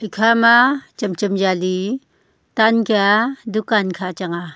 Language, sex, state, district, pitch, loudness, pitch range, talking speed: Wancho, female, Arunachal Pradesh, Longding, 215 Hz, -17 LUFS, 185-230 Hz, 145 wpm